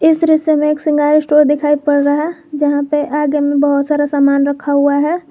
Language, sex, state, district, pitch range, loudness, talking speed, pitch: Hindi, female, Jharkhand, Garhwa, 285-300 Hz, -13 LUFS, 235 wpm, 295 Hz